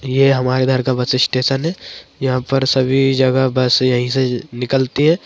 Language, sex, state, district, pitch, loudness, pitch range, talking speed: Hindi, female, Bihar, Madhepura, 130 Hz, -16 LUFS, 130-135 Hz, 180 wpm